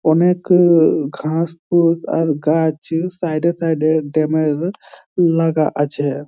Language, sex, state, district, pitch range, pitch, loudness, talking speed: Bengali, male, West Bengal, Jhargram, 155-170 Hz, 160 Hz, -17 LUFS, 125 wpm